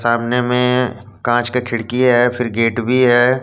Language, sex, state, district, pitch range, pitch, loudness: Hindi, male, Jharkhand, Deoghar, 120-125 Hz, 120 Hz, -16 LUFS